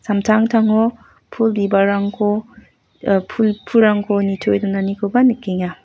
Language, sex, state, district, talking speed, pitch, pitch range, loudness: Garo, female, Meghalaya, West Garo Hills, 80 wpm, 210 Hz, 200-225 Hz, -17 LUFS